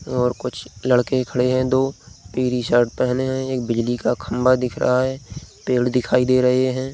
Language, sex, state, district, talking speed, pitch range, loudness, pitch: Hindi, male, Bihar, Begusarai, 190 wpm, 125-130 Hz, -20 LUFS, 125 Hz